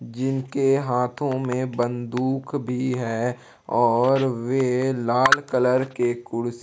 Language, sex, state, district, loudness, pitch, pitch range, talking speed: Hindi, male, Jharkhand, Palamu, -23 LUFS, 125 Hz, 120-130 Hz, 110 wpm